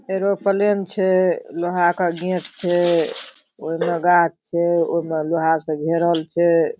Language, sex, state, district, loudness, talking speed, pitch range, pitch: Maithili, female, Bihar, Darbhanga, -20 LUFS, 150 wpm, 165-185 Hz, 170 Hz